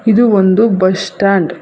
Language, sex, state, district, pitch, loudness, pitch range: Kannada, female, Karnataka, Bangalore, 195 Hz, -11 LUFS, 185-220 Hz